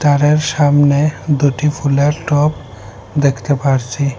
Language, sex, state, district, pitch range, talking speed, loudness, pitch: Bengali, male, Assam, Hailakandi, 135-150 Hz, 100 wpm, -14 LUFS, 145 Hz